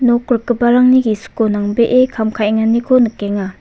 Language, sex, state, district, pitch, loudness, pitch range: Garo, female, Meghalaya, West Garo Hills, 230 Hz, -14 LUFS, 215-245 Hz